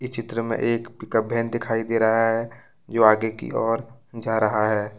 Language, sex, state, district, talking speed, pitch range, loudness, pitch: Hindi, male, Jharkhand, Ranchi, 190 wpm, 110-115 Hz, -23 LUFS, 115 Hz